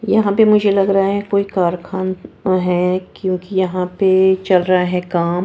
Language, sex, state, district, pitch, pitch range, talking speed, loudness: Hindi, female, Punjab, Kapurthala, 185 Hz, 180-195 Hz, 185 wpm, -16 LUFS